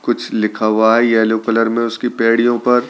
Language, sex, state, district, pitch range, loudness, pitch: Hindi, male, Delhi, New Delhi, 110-120 Hz, -15 LUFS, 115 Hz